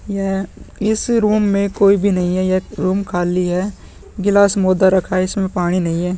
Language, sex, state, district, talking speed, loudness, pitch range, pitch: Hindi, male, Bihar, Vaishali, 195 wpm, -17 LUFS, 185-200 Hz, 190 Hz